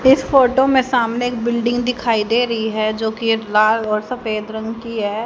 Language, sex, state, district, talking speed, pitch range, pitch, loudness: Hindi, female, Haryana, Rohtak, 215 wpm, 220-245 Hz, 230 Hz, -17 LUFS